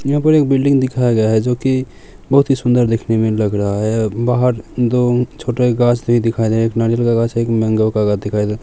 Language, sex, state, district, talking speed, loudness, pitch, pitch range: Maithili, male, Bihar, Samastipur, 245 wpm, -15 LUFS, 120 Hz, 110-125 Hz